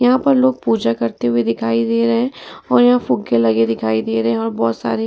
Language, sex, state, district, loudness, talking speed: Hindi, female, Uttar Pradesh, Muzaffarnagar, -16 LUFS, 235 wpm